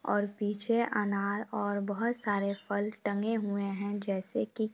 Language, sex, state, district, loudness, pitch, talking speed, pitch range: Hindi, female, Chhattisgarh, Sukma, -32 LUFS, 205 Hz, 165 wpm, 200-215 Hz